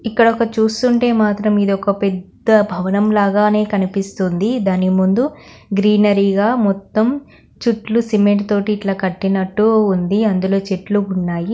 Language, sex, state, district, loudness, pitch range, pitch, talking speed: Telugu, female, Telangana, Karimnagar, -16 LUFS, 195-220 Hz, 205 Hz, 125 wpm